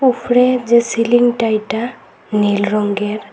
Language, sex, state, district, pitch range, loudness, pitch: Bengali, female, Assam, Hailakandi, 210-240 Hz, -15 LUFS, 230 Hz